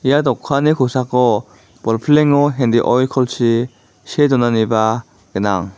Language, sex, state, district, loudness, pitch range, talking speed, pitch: Garo, male, Meghalaya, West Garo Hills, -16 LUFS, 110-135 Hz, 95 wpm, 120 Hz